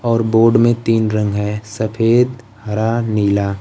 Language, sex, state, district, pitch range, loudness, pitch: Hindi, male, Bihar, Kaimur, 105-115 Hz, -16 LUFS, 110 Hz